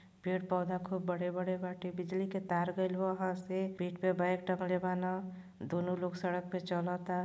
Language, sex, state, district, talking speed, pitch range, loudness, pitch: Bhojpuri, female, Uttar Pradesh, Gorakhpur, 190 wpm, 180-185 Hz, -36 LUFS, 185 Hz